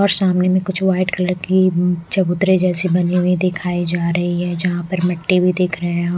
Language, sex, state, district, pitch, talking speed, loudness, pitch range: Hindi, female, Odisha, Malkangiri, 180 Hz, 215 wpm, -17 LUFS, 175-185 Hz